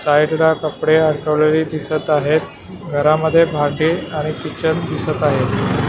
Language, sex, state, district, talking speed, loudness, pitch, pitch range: Marathi, male, Maharashtra, Mumbai Suburban, 120 wpm, -17 LUFS, 155 Hz, 150-160 Hz